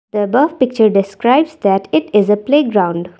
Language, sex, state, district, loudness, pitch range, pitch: English, female, Assam, Kamrup Metropolitan, -14 LUFS, 195-255 Hz, 210 Hz